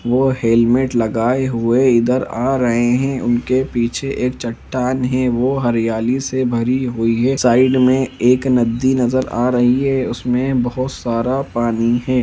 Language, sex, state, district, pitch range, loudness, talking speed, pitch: Hindi, male, Jharkhand, Jamtara, 120-130 Hz, -16 LUFS, 155 wpm, 125 Hz